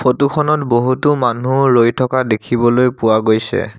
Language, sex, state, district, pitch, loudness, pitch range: Assamese, male, Assam, Sonitpur, 125 Hz, -14 LUFS, 115-130 Hz